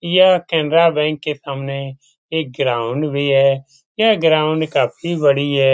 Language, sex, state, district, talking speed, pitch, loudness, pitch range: Hindi, male, Bihar, Lakhisarai, 145 wpm, 150 Hz, -17 LUFS, 135-160 Hz